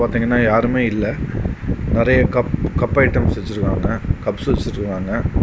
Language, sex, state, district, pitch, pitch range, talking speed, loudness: Tamil, male, Tamil Nadu, Kanyakumari, 110 Hz, 100-120 Hz, 110 wpm, -18 LUFS